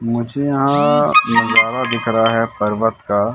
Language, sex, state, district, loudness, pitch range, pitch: Hindi, male, Madhya Pradesh, Katni, -15 LUFS, 115-140 Hz, 115 Hz